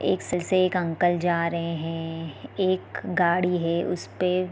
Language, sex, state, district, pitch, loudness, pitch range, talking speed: Hindi, female, Bihar, East Champaran, 175 Hz, -25 LUFS, 170-180 Hz, 175 wpm